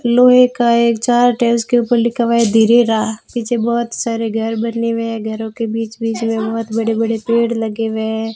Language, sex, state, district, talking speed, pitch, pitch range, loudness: Hindi, female, Rajasthan, Bikaner, 200 wpm, 230 Hz, 225-235 Hz, -15 LUFS